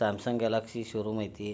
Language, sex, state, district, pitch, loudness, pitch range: Kannada, male, Karnataka, Belgaum, 110 Hz, -32 LUFS, 105-115 Hz